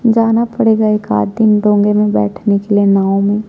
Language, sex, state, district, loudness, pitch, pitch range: Hindi, female, Chhattisgarh, Jashpur, -13 LUFS, 210 Hz, 200-220 Hz